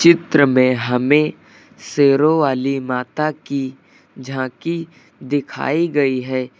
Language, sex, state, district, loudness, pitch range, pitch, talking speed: Hindi, male, Uttar Pradesh, Lucknow, -18 LUFS, 130-150 Hz, 140 Hz, 100 wpm